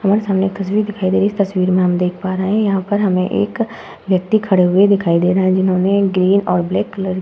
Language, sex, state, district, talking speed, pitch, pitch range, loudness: Hindi, female, Uttar Pradesh, Muzaffarnagar, 275 wpm, 190 Hz, 185-200 Hz, -16 LUFS